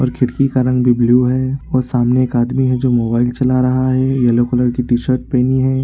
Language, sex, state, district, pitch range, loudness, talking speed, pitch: Hindi, male, Bihar, East Champaran, 125-130 Hz, -15 LUFS, 235 wpm, 125 Hz